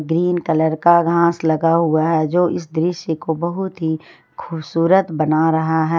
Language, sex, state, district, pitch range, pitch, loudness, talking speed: Hindi, female, Jharkhand, Ranchi, 160-170 Hz, 165 Hz, -17 LUFS, 170 wpm